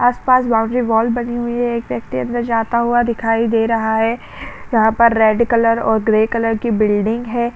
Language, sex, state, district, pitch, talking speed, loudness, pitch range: Hindi, female, Maharashtra, Chandrapur, 230 Hz, 205 wpm, -16 LUFS, 225-240 Hz